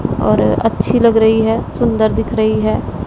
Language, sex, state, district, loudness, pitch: Hindi, female, Punjab, Pathankot, -14 LUFS, 220 Hz